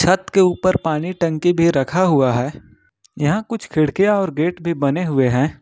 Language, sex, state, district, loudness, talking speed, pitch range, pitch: Hindi, male, Jharkhand, Ranchi, -18 LUFS, 190 wpm, 145-185 Hz, 170 Hz